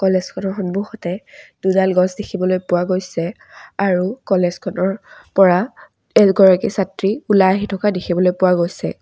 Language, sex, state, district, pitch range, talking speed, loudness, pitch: Assamese, female, Assam, Kamrup Metropolitan, 180-200 Hz, 120 wpm, -17 LUFS, 190 Hz